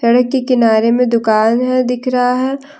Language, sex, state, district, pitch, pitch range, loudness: Hindi, female, Jharkhand, Deoghar, 250 Hz, 235-255 Hz, -13 LUFS